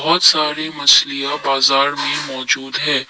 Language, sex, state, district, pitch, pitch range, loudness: Hindi, male, Assam, Kamrup Metropolitan, 140 Hz, 135-155 Hz, -15 LUFS